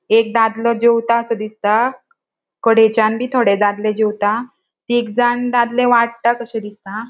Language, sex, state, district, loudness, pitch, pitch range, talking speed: Konkani, female, Goa, North and South Goa, -16 LUFS, 230 Hz, 215-240 Hz, 120 wpm